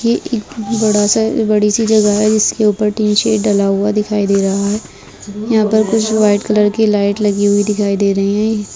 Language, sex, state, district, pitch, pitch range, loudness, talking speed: Hindi, female, Bihar, Purnia, 210 Hz, 205-220 Hz, -14 LUFS, 200 wpm